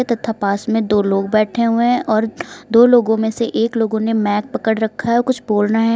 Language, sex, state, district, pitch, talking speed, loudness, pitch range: Hindi, female, Uttar Pradesh, Lucknow, 225 Hz, 250 wpm, -16 LUFS, 215-235 Hz